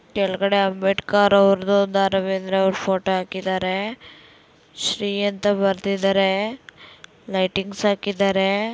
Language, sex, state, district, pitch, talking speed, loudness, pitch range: Kannada, female, Karnataka, Shimoga, 195 Hz, 95 wpm, -21 LUFS, 190-200 Hz